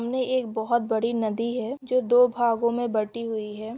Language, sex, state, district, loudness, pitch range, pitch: Hindi, female, Jharkhand, Jamtara, -25 LUFS, 225-245 Hz, 235 Hz